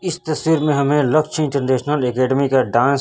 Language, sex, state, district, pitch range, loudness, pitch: Hindi, male, Chhattisgarh, Raipur, 130-155 Hz, -17 LUFS, 140 Hz